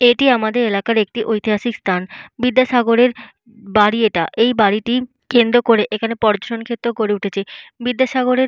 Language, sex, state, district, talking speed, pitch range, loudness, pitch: Bengali, female, Jharkhand, Jamtara, 140 wpm, 215-245 Hz, -17 LUFS, 230 Hz